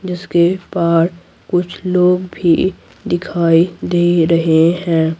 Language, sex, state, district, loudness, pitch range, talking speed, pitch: Hindi, female, Bihar, Patna, -15 LUFS, 165-180 Hz, 105 wpm, 175 Hz